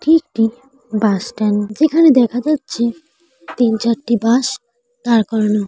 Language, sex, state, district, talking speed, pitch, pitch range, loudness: Bengali, female, West Bengal, Jalpaiguri, 125 wpm, 235 Hz, 215-255 Hz, -16 LUFS